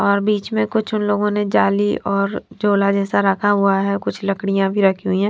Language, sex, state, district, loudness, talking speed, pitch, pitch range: Hindi, female, Punjab, Fazilka, -18 LUFS, 240 wpm, 200 Hz, 195-205 Hz